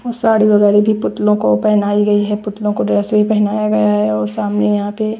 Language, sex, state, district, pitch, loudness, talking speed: Hindi, female, Bihar, West Champaran, 210 Hz, -14 LUFS, 240 wpm